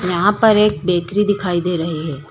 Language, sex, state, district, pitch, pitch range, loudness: Hindi, female, Uttar Pradesh, Budaun, 180 Hz, 170-205 Hz, -17 LUFS